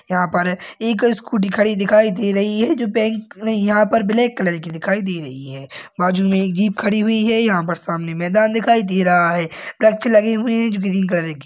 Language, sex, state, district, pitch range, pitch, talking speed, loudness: Hindi, male, Chhattisgarh, Balrampur, 180-220 Hz, 205 Hz, 230 wpm, -17 LUFS